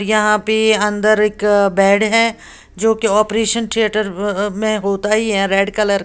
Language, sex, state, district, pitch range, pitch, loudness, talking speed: Hindi, female, Uttar Pradesh, Lalitpur, 200-220 Hz, 210 Hz, -15 LUFS, 180 wpm